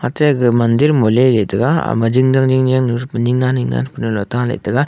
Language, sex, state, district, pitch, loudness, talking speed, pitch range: Wancho, male, Arunachal Pradesh, Longding, 125 Hz, -15 LUFS, 270 wpm, 115-130 Hz